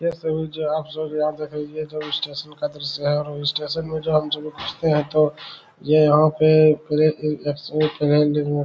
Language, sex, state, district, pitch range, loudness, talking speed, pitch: Hindi, male, Bihar, Saran, 150-155 Hz, -21 LUFS, 235 wpm, 150 Hz